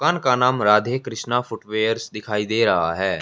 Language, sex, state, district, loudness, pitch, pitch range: Hindi, male, Haryana, Jhajjar, -21 LUFS, 115 Hz, 110-125 Hz